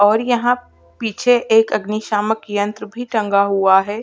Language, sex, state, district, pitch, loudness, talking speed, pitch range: Hindi, female, Chhattisgarh, Sukma, 215 Hz, -17 LUFS, 165 wpm, 205-225 Hz